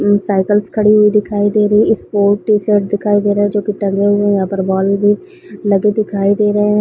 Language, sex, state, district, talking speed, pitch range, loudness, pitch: Hindi, female, Chhattisgarh, Raigarh, 265 wpm, 200-210 Hz, -13 LUFS, 205 Hz